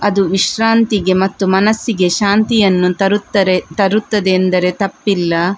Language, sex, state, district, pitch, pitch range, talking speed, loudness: Kannada, female, Karnataka, Dakshina Kannada, 195 Hz, 185-210 Hz, 95 wpm, -14 LUFS